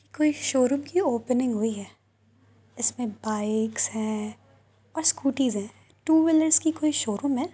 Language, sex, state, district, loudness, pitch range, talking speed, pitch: Hindi, female, Uttar Pradesh, Varanasi, -25 LUFS, 215-305 Hz, 135 wpm, 250 Hz